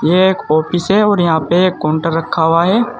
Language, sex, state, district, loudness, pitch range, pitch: Hindi, male, Uttar Pradesh, Saharanpur, -13 LUFS, 165-190 Hz, 175 Hz